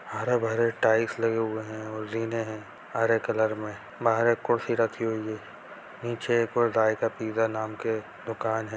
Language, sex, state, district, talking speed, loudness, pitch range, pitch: Hindi, male, Bihar, Jahanabad, 170 wpm, -27 LUFS, 110-115 Hz, 115 Hz